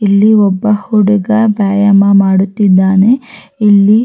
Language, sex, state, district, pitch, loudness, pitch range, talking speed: Kannada, female, Karnataka, Raichur, 205 Hz, -9 LUFS, 200-215 Hz, 90 wpm